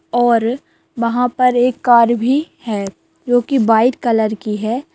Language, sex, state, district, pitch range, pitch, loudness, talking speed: Hindi, female, Bihar, Madhepura, 230-255 Hz, 240 Hz, -15 LUFS, 160 wpm